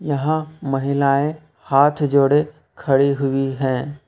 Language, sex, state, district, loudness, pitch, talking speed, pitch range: Hindi, male, Jharkhand, Ranchi, -19 LUFS, 140 Hz, 105 wpm, 135-150 Hz